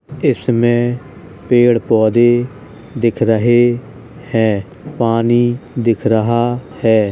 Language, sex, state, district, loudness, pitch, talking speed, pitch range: Hindi, male, Uttar Pradesh, Hamirpur, -14 LUFS, 120 Hz, 85 wpm, 115-125 Hz